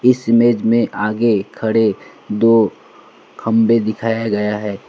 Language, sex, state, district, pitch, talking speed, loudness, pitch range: Hindi, male, West Bengal, Alipurduar, 115 Hz, 125 wpm, -16 LUFS, 105-115 Hz